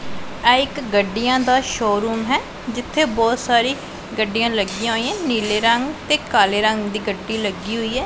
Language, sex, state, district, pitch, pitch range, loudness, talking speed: Punjabi, female, Punjab, Pathankot, 230 Hz, 215-255 Hz, -19 LUFS, 165 wpm